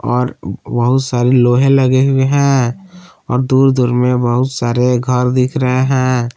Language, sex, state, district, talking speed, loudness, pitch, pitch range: Hindi, male, Jharkhand, Palamu, 160 wpm, -13 LUFS, 125 Hz, 125-135 Hz